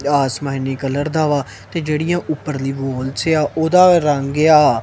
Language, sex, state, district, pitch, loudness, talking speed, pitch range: Punjabi, male, Punjab, Kapurthala, 145 Hz, -17 LUFS, 160 wpm, 135-155 Hz